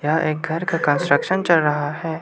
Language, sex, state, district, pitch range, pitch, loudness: Hindi, male, Arunachal Pradesh, Lower Dibang Valley, 150-170 Hz, 160 Hz, -20 LUFS